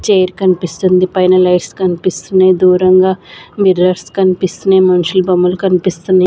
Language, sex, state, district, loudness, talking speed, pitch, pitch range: Telugu, female, Andhra Pradesh, Sri Satya Sai, -11 LUFS, 105 wpm, 185 Hz, 180-190 Hz